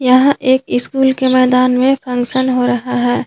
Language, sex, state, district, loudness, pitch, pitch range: Hindi, female, Jharkhand, Garhwa, -13 LUFS, 255 Hz, 250-260 Hz